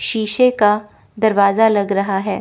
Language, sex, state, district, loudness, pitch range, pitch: Hindi, female, Chandigarh, Chandigarh, -16 LUFS, 200-220 Hz, 210 Hz